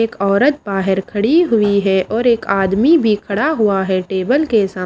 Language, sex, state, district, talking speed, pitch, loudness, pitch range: Hindi, female, Maharashtra, Washim, 210 wpm, 205 Hz, -15 LUFS, 195-230 Hz